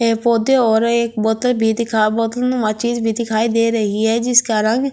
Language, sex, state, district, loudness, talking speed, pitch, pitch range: Hindi, female, Delhi, New Delhi, -16 LUFS, 160 wpm, 230 Hz, 220-235 Hz